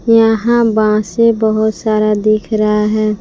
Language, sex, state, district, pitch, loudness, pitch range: Hindi, female, Jharkhand, Palamu, 215 Hz, -13 LUFS, 215-225 Hz